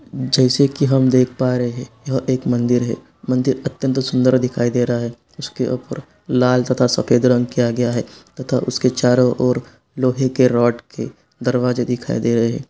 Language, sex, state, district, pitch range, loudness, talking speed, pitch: Hindi, male, Bihar, Saran, 120-130 Hz, -18 LUFS, 195 wpm, 125 Hz